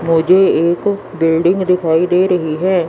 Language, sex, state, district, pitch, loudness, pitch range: Hindi, female, Chandigarh, Chandigarh, 180 Hz, -14 LUFS, 165-185 Hz